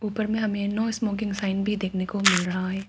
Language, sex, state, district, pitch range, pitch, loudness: Hindi, female, Arunachal Pradesh, Papum Pare, 195-215 Hz, 200 Hz, -25 LUFS